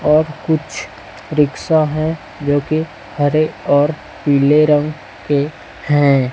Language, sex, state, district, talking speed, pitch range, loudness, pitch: Hindi, male, Chhattisgarh, Raipur, 115 wpm, 140-155 Hz, -16 LUFS, 150 Hz